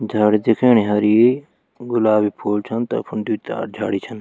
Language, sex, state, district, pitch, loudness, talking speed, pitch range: Garhwali, male, Uttarakhand, Tehri Garhwal, 110 Hz, -18 LUFS, 155 wpm, 105-120 Hz